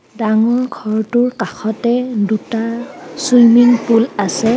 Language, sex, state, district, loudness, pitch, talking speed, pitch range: Assamese, female, Assam, Kamrup Metropolitan, -14 LUFS, 235 Hz, 90 wpm, 220-245 Hz